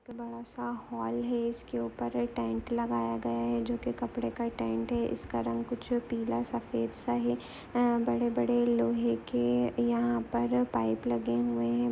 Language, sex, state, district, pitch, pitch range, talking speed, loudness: Hindi, female, Bihar, Bhagalpur, 120 Hz, 115-120 Hz, 170 wpm, -32 LUFS